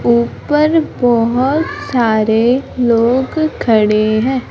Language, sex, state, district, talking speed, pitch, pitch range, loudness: Hindi, female, Madhya Pradesh, Umaria, 80 wpm, 245 Hz, 230-265 Hz, -14 LUFS